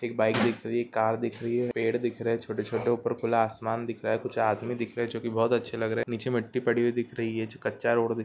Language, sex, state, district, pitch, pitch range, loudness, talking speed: Hindi, male, Telangana, Nalgonda, 115 Hz, 115-120 Hz, -29 LUFS, 300 wpm